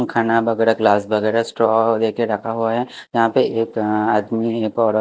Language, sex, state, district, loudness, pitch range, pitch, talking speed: Hindi, male, Maharashtra, Mumbai Suburban, -18 LUFS, 110-115 Hz, 115 Hz, 180 wpm